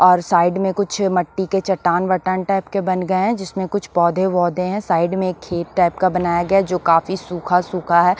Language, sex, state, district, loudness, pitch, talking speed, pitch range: Hindi, female, Maharashtra, Washim, -18 LUFS, 185 Hz, 235 wpm, 175-190 Hz